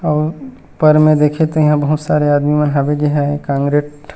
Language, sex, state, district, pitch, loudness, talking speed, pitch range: Chhattisgarhi, male, Chhattisgarh, Rajnandgaon, 150 Hz, -14 LUFS, 190 wpm, 145-150 Hz